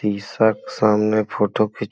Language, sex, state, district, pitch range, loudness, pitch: Bhojpuri, male, Uttar Pradesh, Gorakhpur, 105-110 Hz, -20 LUFS, 105 Hz